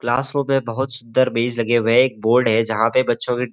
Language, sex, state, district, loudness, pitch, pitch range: Hindi, male, Uttarakhand, Uttarkashi, -18 LUFS, 120 Hz, 115-130 Hz